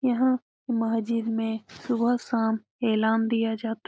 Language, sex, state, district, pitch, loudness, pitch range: Hindi, female, Bihar, Lakhisarai, 225 Hz, -26 LUFS, 225-240 Hz